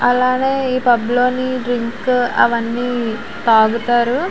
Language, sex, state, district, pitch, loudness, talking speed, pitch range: Telugu, female, Andhra Pradesh, Visakhapatnam, 245 Hz, -16 LUFS, 95 wpm, 235-255 Hz